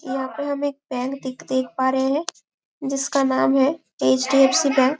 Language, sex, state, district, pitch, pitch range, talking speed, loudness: Hindi, female, Chhattisgarh, Bastar, 270 Hz, 260-285 Hz, 190 wpm, -21 LUFS